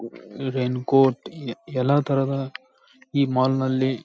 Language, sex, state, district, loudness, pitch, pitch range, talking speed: Kannada, male, Karnataka, Bijapur, -23 LUFS, 135 Hz, 130-140 Hz, 105 wpm